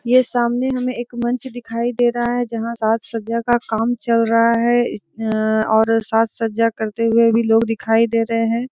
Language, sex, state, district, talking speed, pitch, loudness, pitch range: Hindi, female, Jharkhand, Sahebganj, 185 wpm, 230 Hz, -18 LUFS, 225-240 Hz